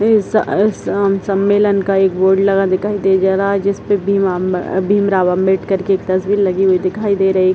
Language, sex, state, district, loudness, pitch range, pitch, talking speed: Hindi, female, Bihar, Gopalganj, -15 LUFS, 190-200 Hz, 195 Hz, 190 wpm